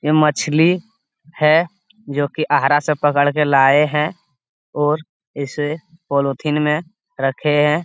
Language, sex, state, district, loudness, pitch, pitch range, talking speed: Hindi, male, Bihar, Jamui, -17 LUFS, 150 Hz, 145-165 Hz, 130 wpm